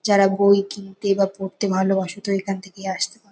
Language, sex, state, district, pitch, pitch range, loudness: Bengali, female, West Bengal, North 24 Parganas, 195 Hz, 190-200 Hz, -21 LUFS